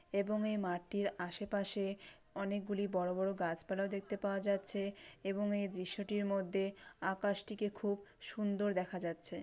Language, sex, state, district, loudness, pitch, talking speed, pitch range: Bengali, female, West Bengal, Dakshin Dinajpur, -38 LUFS, 200 Hz, 160 wpm, 190-205 Hz